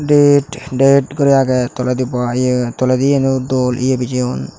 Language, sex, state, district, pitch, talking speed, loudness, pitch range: Chakma, male, Tripura, Unakoti, 130 Hz, 155 wpm, -15 LUFS, 125-135 Hz